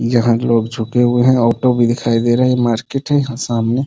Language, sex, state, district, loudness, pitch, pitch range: Hindi, male, Bihar, Muzaffarpur, -15 LUFS, 120 Hz, 115-125 Hz